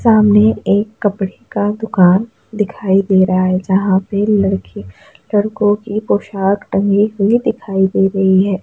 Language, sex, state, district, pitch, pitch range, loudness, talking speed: Hindi, female, Bihar, Jamui, 200 Hz, 190-210 Hz, -14 LUFS, 145 wpm